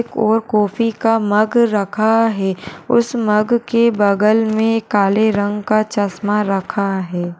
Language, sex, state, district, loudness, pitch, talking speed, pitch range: Hindi, female, Uttar Pradesh, Deoria, -16 LUFS, 215 Hz, 145 wpm, 205-225 Hz